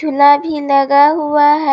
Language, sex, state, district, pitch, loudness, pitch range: Hindi, female, Jharkhand, Palamu, 290 Hz, -12 LUFS, 285-300 Hz